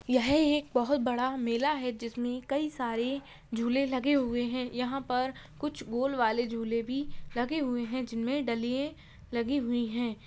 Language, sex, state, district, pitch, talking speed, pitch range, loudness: Hindi, female, Bihar, Purnia, 250 Hz, 165 wpm, 240-275 Hz, -31 LUFS